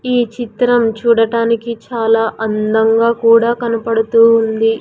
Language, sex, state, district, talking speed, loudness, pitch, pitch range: Telugu, female, Andhra Pradesh, Sri Satya Sai, 100 wpm, -13 LUFS, 230 Hz, 225-235 Hz